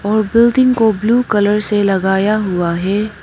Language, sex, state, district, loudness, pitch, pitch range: Hindi, female, Arunachal Pradesh, Papum Pare, -14 LUFS, 210 Hz, 195-220 Hz